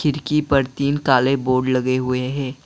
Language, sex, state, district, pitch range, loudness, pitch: Hindi, male, Assam, Kamrup Metropolitan, 130-140 Hz, -19 LUFS, 135 Hz